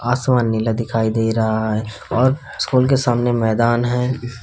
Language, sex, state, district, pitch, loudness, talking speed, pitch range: Hindi, male, Uttar Pradesh, Hamirpur, 120 Hz, -18 LUFS, 160 wpm, 110-125 Hz